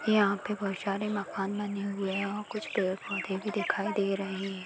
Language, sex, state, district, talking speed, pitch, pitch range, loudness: Hindi, female, Bihar, Bhagalpur, 205 wpm, 200 Hz, 195-205 Hz, -32 LUFS